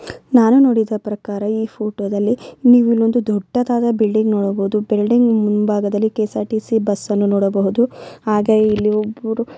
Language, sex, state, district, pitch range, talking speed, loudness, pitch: Kannada, female, Karnataka, Bellary, 210-230 Hz, 125 wpm, -17 LUFS, 215 Hz